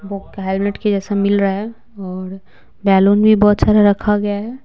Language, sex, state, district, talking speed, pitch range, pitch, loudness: Hindi, female, Bihar, Patna, 195 wpm, 195-210 Hz, 205 Hz, -15 LUFS